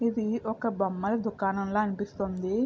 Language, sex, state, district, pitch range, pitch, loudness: Telugu, female, Andhra Pradesh, Chittoor, 195-225 Hz, 210 Hz, -30 LUFS